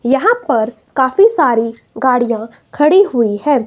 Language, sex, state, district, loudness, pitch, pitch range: Hindi, female, Himachal Pradesh, Shimla, -13 LUFS, 255 Hz, 230-295 Hz